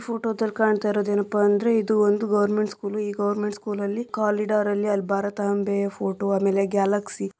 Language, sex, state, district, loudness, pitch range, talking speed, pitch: Kannada, female, Karnataka, Dharwad, -23 LUFS, 200-210 Hz, 160 wpm, 205 Hz